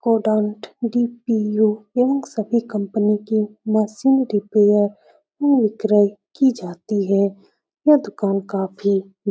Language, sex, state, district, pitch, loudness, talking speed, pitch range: Hindi, female, Uttar Pradesh, Etah, 215 Hz, -20 LUFS, 90 wpm, 205-235 Hz